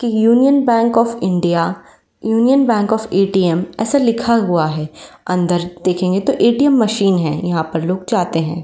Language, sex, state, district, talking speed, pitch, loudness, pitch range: Hindi, female, Uttar Pradesh, Varanasi, 165 wpm, 195 Hz, -15 LUFS, 175-230 Hz